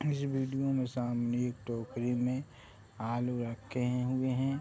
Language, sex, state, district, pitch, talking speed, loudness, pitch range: Hindi, male, Bihar, Madhepura, 125 Hz, 145 wpm, -34 LUFS, 120-130 Hz